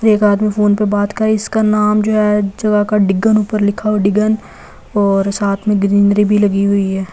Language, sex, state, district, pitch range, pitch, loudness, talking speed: Hindi, female, Delhi, New Delhi, 200-215 Hz, 210 Hz, -14 LUFS, 210 wpm